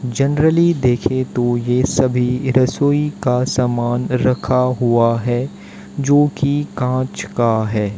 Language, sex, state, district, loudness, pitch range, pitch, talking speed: Hindi, male, Haryana, Jhajjar, -17 LUFS, 120-140 Hz, 125 Hz, 120 wpm